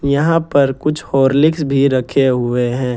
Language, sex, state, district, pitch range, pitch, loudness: Hindi, male, Jharkhand, Ranchi, 130-145 Hz, 135 Hz, -15 LUFS